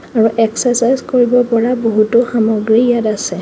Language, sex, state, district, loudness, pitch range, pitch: Assamese, female, Assam, Kamrup Metropolitan, -13 LUFS, 220-245 Hz, 230 Hz